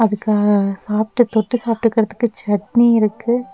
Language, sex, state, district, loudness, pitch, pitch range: Tamil, female, Tamil Nadu, Nilgiris, -17 LUFS, 220 Hz, 210-235 Hz